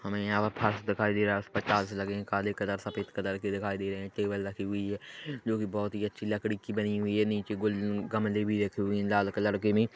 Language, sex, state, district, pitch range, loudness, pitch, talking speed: Hindi, male, Chhattisgarh, Korba, 100-105 Hz, -31 LUFS, 105 Hz, 255 wpm